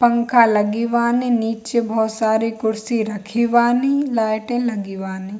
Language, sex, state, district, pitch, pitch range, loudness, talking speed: Hindi, female, Bihar, Kishanganj, 225 Hz, 220-240 Hz, -19 LUFS, 120 wpm